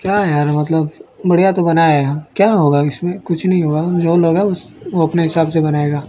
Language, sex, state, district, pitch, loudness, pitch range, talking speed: Hindi, male, Odisha, Malkangiri, 165 Hz, -15 LUFS, 150-180 Hz, 215 wpm